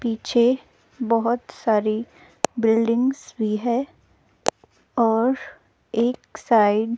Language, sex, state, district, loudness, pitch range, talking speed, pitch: Hindi, female, Himachal Pradesh, Shimla, -22 LUFS, 225-245 Hz, 85 wpm, 230 Hz